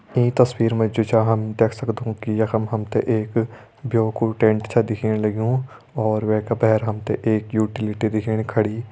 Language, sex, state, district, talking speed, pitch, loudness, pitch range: Hindi, male, Uttarakhand, Tehri Garhwal, 195 wpm, 110 Hz, -21 LUFS, 110-115 Hz